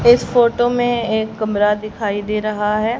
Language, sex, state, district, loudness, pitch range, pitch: Hindi, female, Haryana, Rohtak, -17 LUFS, 210-240 Hz, 220 Hz